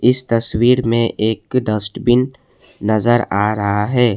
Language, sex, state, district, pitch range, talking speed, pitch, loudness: Hindi, male, Assam, Kamrup Metropolitan, 105-120 Hz, 130 wpm, 115 Hz, -16 LUFS